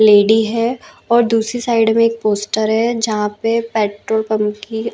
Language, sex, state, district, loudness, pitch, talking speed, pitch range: Hindi, female, Chhattisgarh, Balrampur, -16 LUFS, 220 Hz, 170 wpm, 215-230 Hz